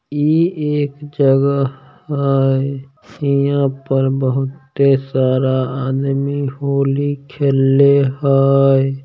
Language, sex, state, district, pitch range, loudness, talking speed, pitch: Maithili, male, Bihar, Samastipur, 135-140 Hz, -16 LUFS, 85 wpm, 135 Hz